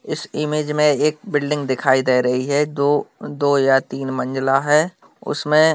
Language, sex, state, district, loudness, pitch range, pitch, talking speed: Hindi, male, Bihar, Bhagalpur, -19 LUFS, 135-150 Hz, 145 Hz, 145 wpm